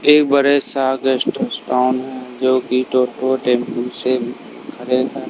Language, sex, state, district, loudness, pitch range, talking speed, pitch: Hindi, male, Bihar, Katihar, -17 LUFS, 125-135 Hz, 145 wpm, 130 Hz